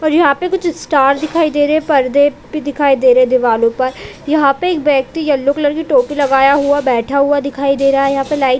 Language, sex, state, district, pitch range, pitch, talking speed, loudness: Hindi, female, Chhattisgarh, Bilaspur, 270-295 Hz, 280 Hz, 260 wpm, -13 LUFS